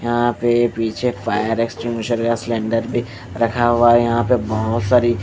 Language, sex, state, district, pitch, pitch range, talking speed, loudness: Hindi, male, Bihar, West Champaran, 115 Hz, 115-120 Hz, 170 wpm, -18 LUFS